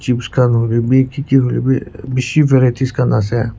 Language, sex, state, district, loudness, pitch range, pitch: Nagamese, male, Nagaland, Kohima, -15 LUFS, 115-130 Hz, 125 Hz